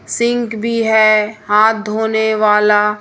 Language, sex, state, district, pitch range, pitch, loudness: Hindi, female, Madhya Pradesh, Umaria, 210-220 Hz, 220 Hz, -13 LUFS